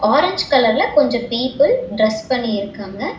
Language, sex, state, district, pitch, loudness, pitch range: Tamil, female, Tamil Nadu, Chennai, 240 Hz, -17 LUFS, 215-280 Hz